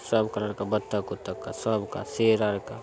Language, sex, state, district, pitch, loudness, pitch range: Hindi, male, Bihar, Saran, 105 Hz, -28 LUFS, 105-110 Hz